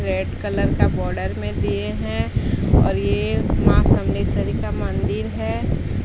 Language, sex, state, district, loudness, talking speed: Hindi, female, Odisha, Sambalpur, -21 LUFS, 140 wpm